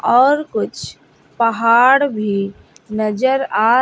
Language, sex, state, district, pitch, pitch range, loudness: Hindi, female, Bihar, West Champaran, 230 Hz, 215-260 Hz, -15 LUFS